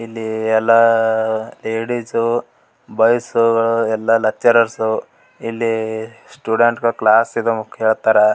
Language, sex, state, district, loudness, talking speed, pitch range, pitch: Kannada, male, Karnataka, Gulbarga, -16 LUFS, 85 wpm, 110-115 Hz, 115 Hz